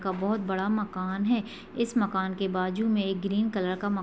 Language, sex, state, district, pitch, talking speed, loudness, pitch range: Hindi, female, Chhattisgarh, Bilaspur, 200 Hz, 240 wpm, -29 LUFS, 190-215 Hz